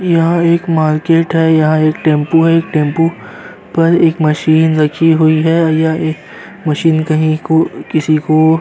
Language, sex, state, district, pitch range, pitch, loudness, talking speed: Hindi, male, Uttar Pradesh, Jyotiba Phule Nagar, 155-165 Hz, 160 Hz, -12 LUFS, 165 wpm